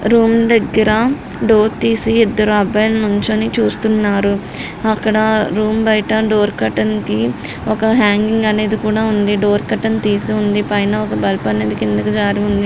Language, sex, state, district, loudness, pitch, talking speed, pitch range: Telugu, female, Karnataka, Raichur, -15 LUFS, 215 Hz, 140 wpm, 205-220 Hz